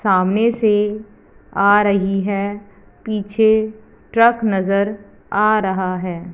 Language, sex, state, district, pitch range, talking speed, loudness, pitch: Hindi, female, Punjab, Fazilka, 195-215 Hz, 105 wpm, -17 LUFS, 205 Hz